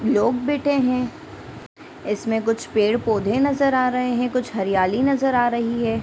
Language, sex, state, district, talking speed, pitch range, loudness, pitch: Hindi, female, Bihar, Darbhanga, 160 wpm, 225-265 Hz, -21 LUFS, 245 Hz